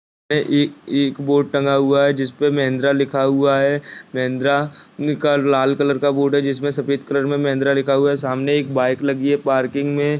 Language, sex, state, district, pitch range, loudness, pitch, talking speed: Hindi, male, Bihar, Saharsa, 135-145 Hz, -18 LUFS, 140 Hz, 205 wpm